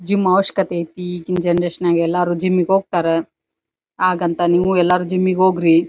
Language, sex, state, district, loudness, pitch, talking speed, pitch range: Kannada, female, Karnataka, Dharwad, -17 LUFS, 180 Hz, 140 wpm, 175-185 Hz